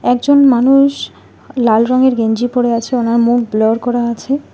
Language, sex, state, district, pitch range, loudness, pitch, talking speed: Bengali, female, West Bengal, Alipurduar, 235-260 Hz, -13 LUFS, 245 Hz, 160 wpm